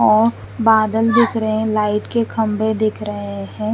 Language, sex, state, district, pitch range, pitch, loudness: Hindi, female, Chandigarh, Chandigarh, 215-225 Hz, 220 Hz, -18 LUFS